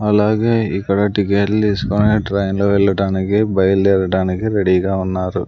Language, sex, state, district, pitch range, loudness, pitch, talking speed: Telugu, male, Andhra Pradesh, Sri Satya Sai, 95-105 Hz, -16 LUFS, 100 Hz, 110 wpm